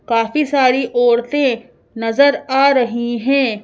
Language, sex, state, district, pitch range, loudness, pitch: Hindi, female, Madhya Pradesh, Bhopal, 235-275 Hz, -15 LUFS, 255 Hz